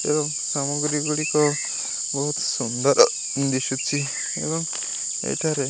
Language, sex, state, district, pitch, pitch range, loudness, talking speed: Odia, male, Odisha, Malkangiri, 145 Hz, 140-150 Hz, -22 LUFS, 75 wpm